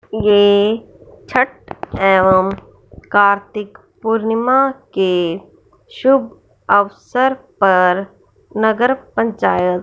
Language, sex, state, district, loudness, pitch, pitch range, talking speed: Hindi, female, Punjab, Fazilka, -15 LUFS, 210 Hz, 195-240 Hz, 65 wpm